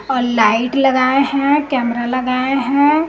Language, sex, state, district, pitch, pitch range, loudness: Hindi, female, Chhattisgarh, Raipur, 260 Hz, 245-275 Hz, -15 LUFS